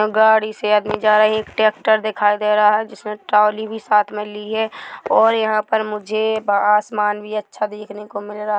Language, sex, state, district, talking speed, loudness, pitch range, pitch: Hindi, female, Chhattisgarh, Bilaspur, 215 wpm, -18 LUFS, 210-220 Hz, 210 Hz